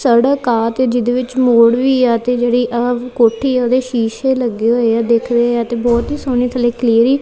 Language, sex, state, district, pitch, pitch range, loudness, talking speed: Punjabi, female, Punjab, Kapurthala, 240 Hz, 235-255 Hz, -14 LUFS, 210 wpm